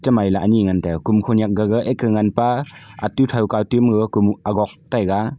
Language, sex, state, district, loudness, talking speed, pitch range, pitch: Wancho, male, Arunachal Pradesh, Longding, -18 LUFS, 200 wpm, 105-120 Hz, 110 Hz